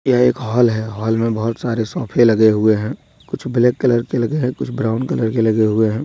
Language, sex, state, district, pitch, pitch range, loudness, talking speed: Hindi, male, Jharkhand, Deoghar, 115 Hz, 110-125 Hz, -17 LUFS, 250 wpm